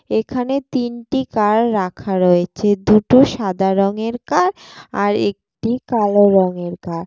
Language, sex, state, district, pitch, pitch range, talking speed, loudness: Bengali, female, West Bengal, Jalpaiguri, 210 Hz, 190-240 Hz, 125 wpm, -17 LUFS